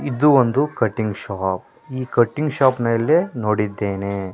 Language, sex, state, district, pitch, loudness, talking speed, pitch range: Kannada, male, Karnataka, Koppal, 115 Hz, -20 LUFS, 125 wpm, 100-130 Hz